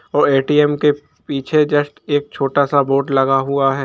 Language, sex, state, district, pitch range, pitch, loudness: Hindi, male, Jharkhand, Jamtara, 135-145 Hz, 140 Hz, -16 LUFS